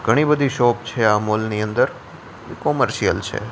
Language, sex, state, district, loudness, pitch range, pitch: Gujarati, male, Gujarat, Gandhinagar, -19 LUFS, 110-130 Hz, 115 Hz